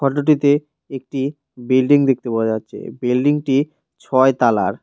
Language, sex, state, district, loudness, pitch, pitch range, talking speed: Bengali, male, West Bengal, Cooch Behar, -18 LUFS, 135 Hz, 125-145 Hz, 125 wpm